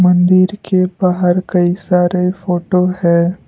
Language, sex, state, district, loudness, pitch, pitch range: Hindi, male, Assam, Kamrup Metropolitan, -14 LUFS, 180 Hz, 180-185 Hz